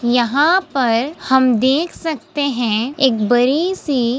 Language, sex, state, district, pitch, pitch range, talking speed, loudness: Hindi, female, Uttar Pradesh, Muzaffarnagar, 265 Hz, 240-295 Hz, 145 wpm, -16 LUFS